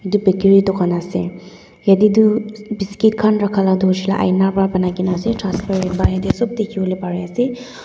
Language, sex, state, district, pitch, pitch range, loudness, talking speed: Nagamese, female, Nagaland, Dimapur, 195 Hz, 185-215 Hz, -17 LUFS, 175 wpm